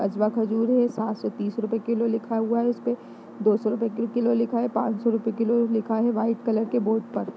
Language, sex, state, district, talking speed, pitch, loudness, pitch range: Hindi, female, Bihar, Darbhanga, 230 wpm, 225 Hz, -25 LUFS, 220-235 Hz